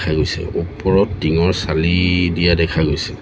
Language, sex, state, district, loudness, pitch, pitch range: Assamese, male, Assam, Sonitpur, -17 LUFS, 85 Hz, 80-90 Hz